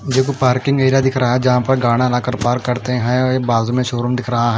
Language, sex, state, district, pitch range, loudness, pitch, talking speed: Hindi, male, Punjab, Fazilka, 120-130 Hz, -16 LUFS, 125 Hz, 260 wpm